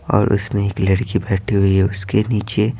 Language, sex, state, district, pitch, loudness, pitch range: Hindi, male, Bihar, Patna, 100 Hz, -18 LUFS, 95-105 Hz